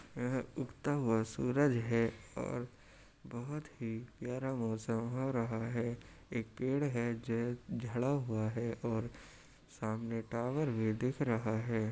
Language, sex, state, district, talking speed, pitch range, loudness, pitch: Hindi, male, Uttar Pradesh, Jyotiba Phule Nagar, 135 wpm, 115-125 Hz, -37 LUFS, 120 Hz